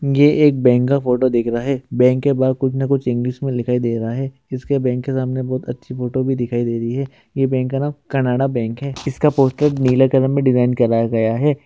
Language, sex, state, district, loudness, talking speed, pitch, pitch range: Hindi, male, Uttarakhand, Uttarkashi, -18 LUFS, 245 wpm, 130 Hz, 125-135 Hz